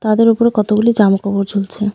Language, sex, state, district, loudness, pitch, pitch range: Bengali, female, West Bengal, Alipurduar, -14 LUFS, 210 Hz, 200-225 Hz